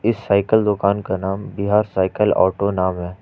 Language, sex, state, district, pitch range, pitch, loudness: Hindi, male, Jharkhand, Ranchi, 95-105 Hz, 100 Hz, -19 LUFS